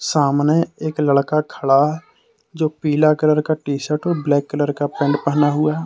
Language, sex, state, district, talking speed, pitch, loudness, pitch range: Hindi, male, Jharkhand, Deoghar, 175 wpm, 150 Hz, -18 LUFS, 145-155 Hz